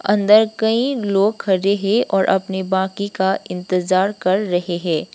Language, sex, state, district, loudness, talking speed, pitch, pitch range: Hindi, female, Sikkim, Gangtok, -18 LUFS, 150 wpm, 195 Hz, 185-210 Hz